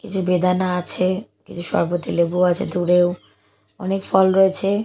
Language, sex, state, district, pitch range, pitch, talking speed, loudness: Bengali, female, Odisha, Malkangiri, 175-190 Hz, 180 Hz, 135 wpm, -19 LUFS